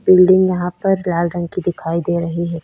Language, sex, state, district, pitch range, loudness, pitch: Hindi, female, Chhattisgarh, Sukma, 170-185 Hz, -17 LUFS, 175 Hz